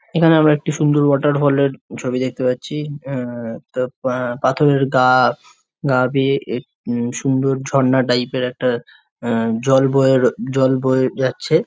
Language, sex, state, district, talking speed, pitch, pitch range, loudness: Bengali, male, West Bengal, Jhargram, 145 wpm, 130 Hz, 125-140 Hz, -18 LUFS